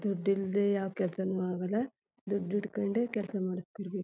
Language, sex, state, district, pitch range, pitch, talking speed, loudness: Kannada, female, Karnataka, Chamarajanagar, 190-205 Hz, 200 Hz, 105 wpm, -33 LUFS